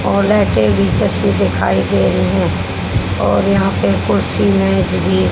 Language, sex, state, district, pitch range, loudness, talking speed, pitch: Hindi, female, Haryana, Rohtak, 95-100 Hz, -14 LUFS, 170 wpm, 95 Hz